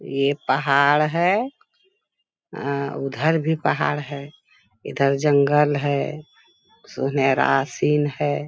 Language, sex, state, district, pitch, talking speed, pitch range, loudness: Hindi, female, Bihar, Bhagalpur, 145 Hz, 100 wpm, 140-155 Hz, -21 LUFS